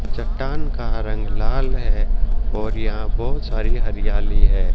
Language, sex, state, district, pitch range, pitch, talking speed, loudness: Hindi, male, Haryana, Jhajjar, 105-115 Hz, 110 Hz, 140 wpm, -25 LUFS